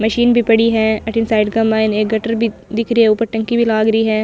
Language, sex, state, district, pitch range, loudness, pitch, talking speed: Marwari, female, Rajasthan, Nagaur, 220-230 Hz, -15 LUFS, 225 Hz, 270 wpm